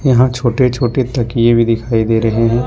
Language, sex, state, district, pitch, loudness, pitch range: Hindi, male, Jharkhand, Ranchi, 120 Hz, -14 LUFS, 115-125 Hz